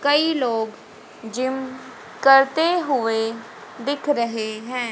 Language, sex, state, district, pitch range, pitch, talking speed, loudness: Hindi, female, Haryana, Jhajjar, 225-280 Hz, 255 Hz, 95 wpm, -21 LUFS